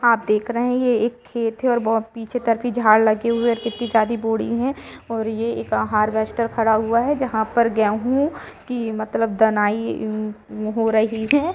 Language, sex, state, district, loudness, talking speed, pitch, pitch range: Hindi, female, Jharkhand, Jamtara, -20 LUFS, 180 wpm, 225 Hz, 220-235 Hz